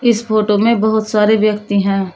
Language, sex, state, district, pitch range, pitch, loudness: Hindi, female, Uttar Pradesh, Shamli, 205-220 Hz, 215 Hz, -14 LUFS